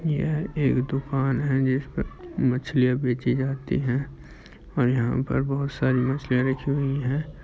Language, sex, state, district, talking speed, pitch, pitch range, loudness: Hindi, male, Uttar Pradesh, Muzaffarnagar, 155 wpm, 135 Hz, 125-140 Hz, -25 LUFS